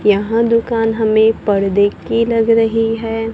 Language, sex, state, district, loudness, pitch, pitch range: Hindi, female, Maharashtra, Gondia, -15 LUFS, 225 Hz, 215-230 Hz